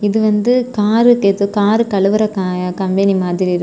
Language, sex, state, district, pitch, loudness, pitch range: Tamil, female, Tamil Nadu, Kanyakumari, 200 Hz, -14 LUFS, 190-215 Hz